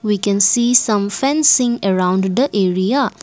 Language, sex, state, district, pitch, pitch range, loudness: English, female, Assam, Kamrup Metropolitan, 210 Hz, 195-250 Hz, -15 LUFS